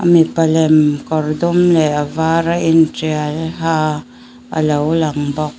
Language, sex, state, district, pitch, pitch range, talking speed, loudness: Mizo, female, Mizoram, Aizawl, 160 Hz, 150-165 Hz, 150 wpm, -15 LUFS